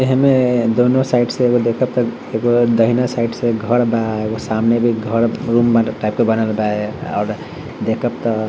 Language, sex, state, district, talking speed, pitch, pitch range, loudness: Bhojpuri, male, Bihar, Saran, 185 wpm, 115 Hz, 110-120 Hz, -16 LUFS